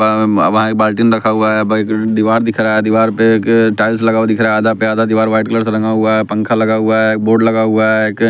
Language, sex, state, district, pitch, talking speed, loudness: Hindi, male, Bihar, West Champaran, 110 Hz, 275 wpm, -12 LUFS